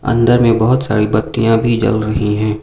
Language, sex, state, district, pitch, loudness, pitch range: Hindi, male, Sikkim, Gangtok, 115 Hz, -14 LUFS, 110-120 Hz